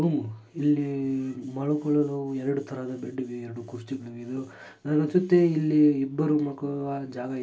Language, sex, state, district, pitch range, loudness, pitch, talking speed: Kannada, male, Karnataka, Dharwad, 130-150 Hz, -27 LUFS, 140 Hz, 135 wpm